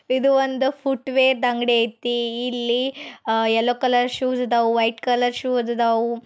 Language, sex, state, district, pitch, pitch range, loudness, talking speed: Kannada, male, Karnataka, Bijapur, 245 Hz, 235-260 Hz, -21 LUFS, 155 wpm